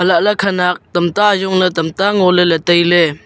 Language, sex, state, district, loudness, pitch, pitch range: Wancho, male, Arunachal Pradesh, Longding, -13 LUFS, 180 Hz, 175-195 Hz